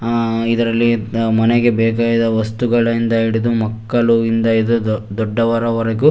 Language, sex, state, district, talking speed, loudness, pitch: Kannada, male, Karnataka, Shimoga, 100 wpm, -16 LUFS, 115 Hz